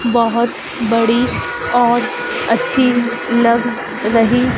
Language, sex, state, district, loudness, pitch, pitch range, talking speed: Hindi, female, Madhya Pradesh, Dhar, -15 LUFS, 240 Hz, 230-245 Hz, 80 wpm